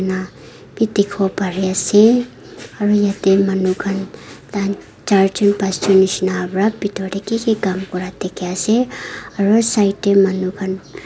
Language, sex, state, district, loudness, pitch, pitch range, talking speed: Nagamese, female, Nagaland, Dimapur, -17 LUFS, 195 Hz, 190-205 Hz, 135 wpm